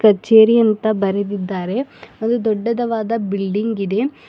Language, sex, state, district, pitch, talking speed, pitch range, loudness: Kannada, female, Karnataka, Bidar, 220 Hz, 100 wpm, 200-230 Hz, -17 LUFS